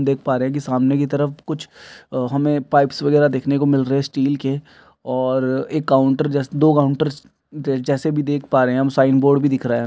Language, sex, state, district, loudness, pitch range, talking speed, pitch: Maithili, male, Bihar, Samastipur, -18 LUFS, 135-145 Hz, 230 wpm, 140 Hz